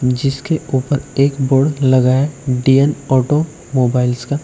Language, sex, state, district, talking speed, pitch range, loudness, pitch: Hindi, male, Uttar Pradesh, Shamli, 120 wpm, 130-145 Hz, -15 LUFS, 135 Hz